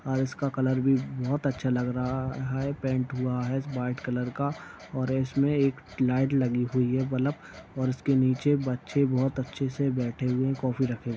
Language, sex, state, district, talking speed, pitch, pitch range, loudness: Hindi, male, Uttar Pradesh, Etah, 190 wpm, 130 Hz, 125-135 Hz, -28 LUFS